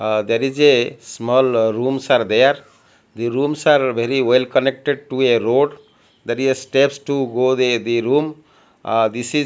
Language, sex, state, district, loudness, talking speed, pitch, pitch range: English, male, Odisha, Malkangiri, -17 LUFS, 185 wpm, 130 Hz, 120-140 Hz